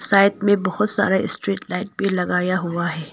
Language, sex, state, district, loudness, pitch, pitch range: Hindi, female, Arunachal Pradesh, Longding, -20 LUFS, 190 Hz, 180-200 Hz